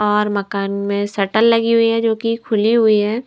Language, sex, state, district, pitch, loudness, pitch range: Hindi, female, Himachal Pradesh, Shimla, 215 Hz, -16 LUFS, 205-230 Hz